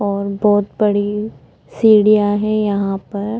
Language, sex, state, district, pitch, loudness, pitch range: Hindi, female, Uttar Pradesh, Budaun, 205 Hz, -16 LUFS, 200-215 Hz